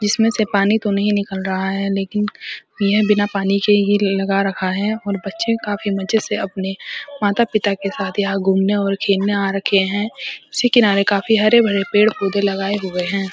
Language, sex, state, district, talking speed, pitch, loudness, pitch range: Hindi, female, Uttarakhand, Uttarkashi, 190 wpm, 200 Hz, -18 LUFS, 195-210 Hz